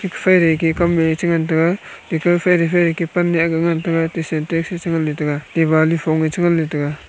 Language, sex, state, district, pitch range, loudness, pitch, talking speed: Wancho, male, Arunachal Pradesh, Longding, 160-170 Hz, -17 LUFS, 165 Hz, 205 wpm